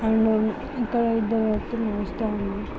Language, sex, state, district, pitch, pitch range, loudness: Telugu, female, Andhra Pradesh, Visakhapatnam, 220 Hz, 215-230 Hz, -25 LUFS